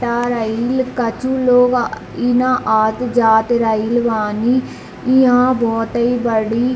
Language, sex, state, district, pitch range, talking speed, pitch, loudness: Hindi, female, Bihar, East Champaran, 225-250 Hz, 125 wpm, 240 Hz, -16 LUFS